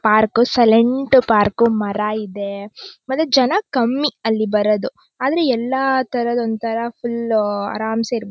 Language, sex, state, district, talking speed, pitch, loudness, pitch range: Kannada, female, Karnataka, Shimoga, 110 wpm, 230 Hz, -18 LUFS, 215-255 Hz